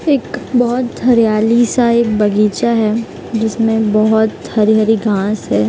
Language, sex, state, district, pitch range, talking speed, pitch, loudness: Hindi, female, Bihar, East Champaran, 215-235 Hz, 125 wpm, 220 Hz, -14 LUFS